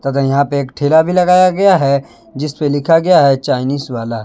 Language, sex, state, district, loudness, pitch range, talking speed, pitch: Hindi, male, Jharkhand, Palamu, -13 LUFS, 135-165 Hz, 225 wpm, 145 Hz